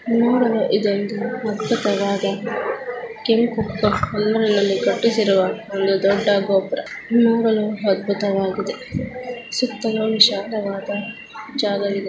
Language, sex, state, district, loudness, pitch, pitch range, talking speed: Kannada, female, Karnataka, Mysore, -20 LUFS, 215 Hz, 200-230 Hz, 85 wpm